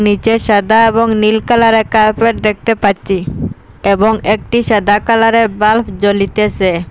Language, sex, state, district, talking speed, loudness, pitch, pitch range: Bengali, female, Assam, Hailakandi, 120 wpm, -12 LUFS, 215 Hz, 205-225 Hz